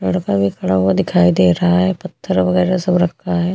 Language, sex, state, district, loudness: Hindi, female, Chhattisgarh, Bastar, -15 LUFS